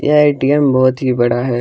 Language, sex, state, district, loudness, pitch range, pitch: Hindi, male, Chhattisgarh, Kabirdham, -13 LUFS, 125-145 Hz, 130 Hz